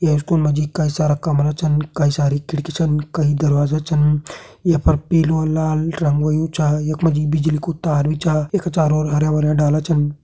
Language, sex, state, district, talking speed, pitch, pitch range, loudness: Hindi, male, Uttarakhand, Tehri Garhwal, 215 wpm, 155 Hz, 150-160 Hz, -18 LUFS